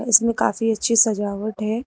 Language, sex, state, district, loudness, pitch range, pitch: Hindi, female, Uttar Pradesh, Lucknow, -19 LUFS, 215-230 Hz, 225 Hz